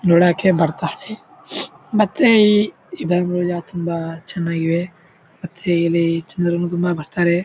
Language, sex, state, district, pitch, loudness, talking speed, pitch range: Kannada, male, Karnataka, Bijapur, 175 Hz, -19 LUFS, 95 wpm, 170-185 Hz